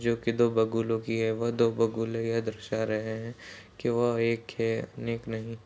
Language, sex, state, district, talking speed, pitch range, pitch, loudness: Hindi, male, Uttar Pradesh, Jalaun, 180 wpm, 110-115 Hz, 115 Hz, -29 LUFS